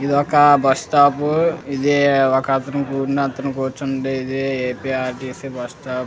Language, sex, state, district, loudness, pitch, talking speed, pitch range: Telugu, male, Andhra Pradesh, Visakhapatnam, -18 LUFS, 135 Hz, 100 wpm, 130-140 Hz